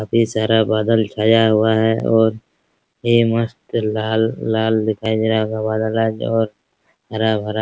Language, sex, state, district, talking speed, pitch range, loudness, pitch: Hindi, male, Bihar, Araria, 135 wpm, 110-115 Hz, -18 LUFS, 110 Hz